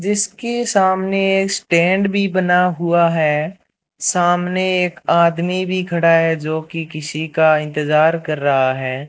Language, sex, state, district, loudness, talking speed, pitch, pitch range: Hindi, male, Rajasthan, Bikaner, -17 LUFS, 145 wpm, 170 Hz, 155-185 Hz